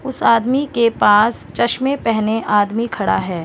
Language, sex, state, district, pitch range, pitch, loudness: Hindi, female, Chhattisgarh, Bilaspur, 210-240 Hz, 230 Hz, -16 LUFS